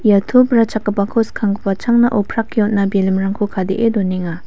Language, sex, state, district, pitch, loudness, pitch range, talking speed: Garo, female, Meghalaya, West Garo Hills, 210 Hz, -16 LUFS, 195-230 Hz, 135 wpm